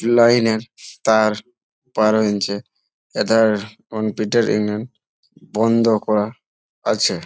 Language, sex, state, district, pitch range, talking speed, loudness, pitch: Bengali, male, West Bengal, Malda, 105-115 Hz, 85 wpm, -19 LUFS, 110 Hz